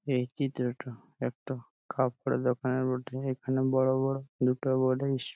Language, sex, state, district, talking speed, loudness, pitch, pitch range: Bengali, male, West Bengal, Malda, 135 wpm, -31 LUFS, 130 Hz, 125-135 Hz